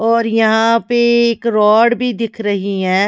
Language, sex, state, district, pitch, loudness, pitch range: Hindi, female, Himachal Pradesh, Shimla, 225 Hz, -14 LUFS, 210-235 Hz